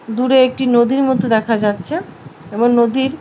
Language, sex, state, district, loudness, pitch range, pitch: Bengali, female, West Bengal, Paschim Medinipur, -15 LUFS, 220-260 Hz, 240 Hz